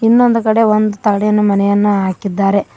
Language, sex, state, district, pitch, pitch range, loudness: Kannada, female, Karnataka, Koppal, 210 Hz, 200-220 Hz, -13 LUFS